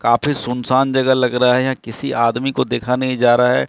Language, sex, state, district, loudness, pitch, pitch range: Hindi, male, Bihar, Katihar, -17 LUFS, 125 Hz, 120-130 Hz